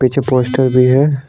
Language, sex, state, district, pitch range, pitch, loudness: Hindi, male, Chhattisgarh, Sukma, 130-140 Hz, 130 Hz, -13 LUFS